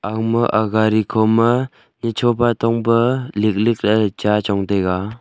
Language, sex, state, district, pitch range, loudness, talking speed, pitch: Wancho, male, Arunachal Pradesh, Longding, 105-115 Hz, -17 LUFS, 125 wpm, 110 Hz